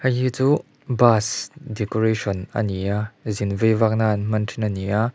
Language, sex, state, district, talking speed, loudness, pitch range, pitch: Mizo, male, Mizoram, Aizawl, 185 wpm, -22 LUFS, 105-120 Hz, 110 Hz